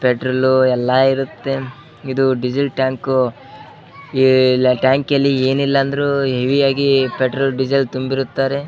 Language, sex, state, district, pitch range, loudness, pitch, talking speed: Kannada, male, Karnataka, Bellary, 130-140 Hz, -16 LUFS, 135 Hz, 105 wpm